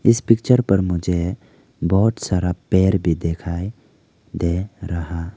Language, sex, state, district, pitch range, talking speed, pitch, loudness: Hindi, male, Arunachal Pradesh, Lower Dibang Valley, 85-105 Hz, 125 wpm, 95 Hz, -20 LUFS